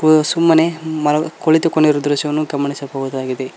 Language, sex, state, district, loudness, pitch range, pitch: Kannada, male, Karnataka, Koppal, -16 LUFS, 140-160 Hz, 150 Hz